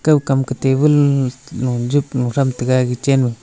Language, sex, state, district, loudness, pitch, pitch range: Wancho, male, Arunachal Pradesh, Longding, -17 LUFS, 135 Hz, 125-140 Hz